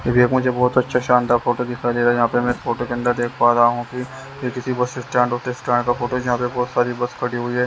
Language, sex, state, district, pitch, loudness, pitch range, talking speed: Hindi, male, Haryana, Jhajjar, 125 Hz, -20 LUFS, 120-125 Hz, 290 wpm